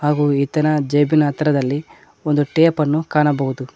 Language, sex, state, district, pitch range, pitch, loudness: Kannada, male, Karnataka, Koppal, 140-155 Hz, 150 Hz, -17 LUFS